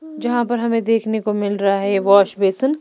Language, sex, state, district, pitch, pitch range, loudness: Hindi, female, Punjab, Pathankot, 220 Hz, 200-240 Hz, -18 LUFS